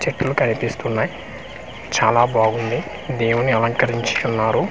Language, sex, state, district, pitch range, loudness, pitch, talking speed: Telugu, male, Andhra Pradesh, Manyam, 115-120 Hz, -19 LUFS, 115 Hz, 100 wpm